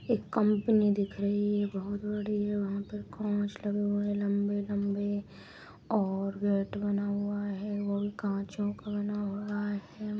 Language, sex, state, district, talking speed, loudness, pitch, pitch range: Hindi, female, Bihar, Saharsa, 145 wpm, -32 LUFS, 205 Hz, 200-205 Hz